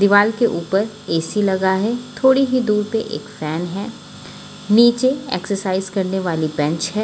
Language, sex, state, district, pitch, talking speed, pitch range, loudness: Hindi, female, Chhattisgarh, Raipur, 205 Hz, 160 wpm, 185-225 Hz, -19 LUFS